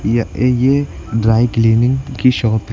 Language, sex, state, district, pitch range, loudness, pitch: Hindi, male, Uttar Pradesh, Lucknow, 110-125 Hz, -15 LUFS, 115 Hz